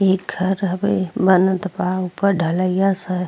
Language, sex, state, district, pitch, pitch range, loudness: Bhojpuri, female, Uttar Pradesh, Gorakhpur, 185 Hz, 185-195 Hz, -19 LUFS